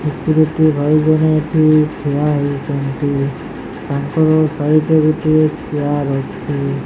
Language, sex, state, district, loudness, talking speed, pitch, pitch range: Odia, male, Odisha, Sambalpur, -15 LUFS, 115 wpm, 150 Hz, 140-155 Hz